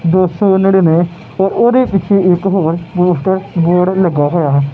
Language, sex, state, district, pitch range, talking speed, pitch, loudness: Punjabi, male, Punjab, Kapurthala, 170-195 Hz, 140 wpm, 180 Hz, -12 LUFS